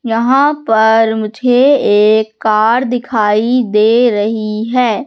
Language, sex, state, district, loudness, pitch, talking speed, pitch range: Hindi, female, Madhya Pradesh, Katni, -12 LUFS, 225 Hz, 105 wpm, 215-245 Hz